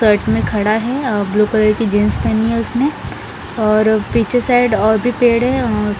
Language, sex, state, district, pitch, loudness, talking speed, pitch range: Hindi, female, Bihar, Patna, 220 Hz, -15 LUFS, 190 wpm, 210-240 Hz